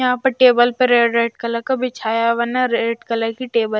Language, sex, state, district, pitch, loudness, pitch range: Hindi, female, Haryana, Charkhi Dadri, 235 Hz, -17 LUFS, 230-255 Hz